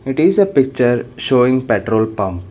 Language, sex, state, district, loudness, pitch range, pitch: English, male, Karnataka, Bangalore, -15 LUFS, 110-135 Hz, 125 Hz